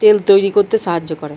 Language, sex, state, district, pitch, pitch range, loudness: Bengali, male, Jharkhand, Jamtara, 200 Hz, 165-205 Hz, -14 LUFS